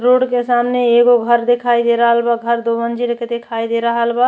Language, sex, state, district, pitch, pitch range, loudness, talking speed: Bhojpuri, female, Uttar Pradesh, Ghazipur, 235 Hz, 235-245 Hz, -15 LUFS, 240 wpm